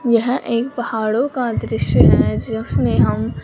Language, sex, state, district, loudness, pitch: Hindi, male, Punjab, Fazilka, -17 LUFS, 230 Hz